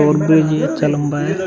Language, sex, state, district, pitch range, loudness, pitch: Hindi, male, Bihar, Vaishali, 150-160 Hz, -15 LUFS, 155 Hz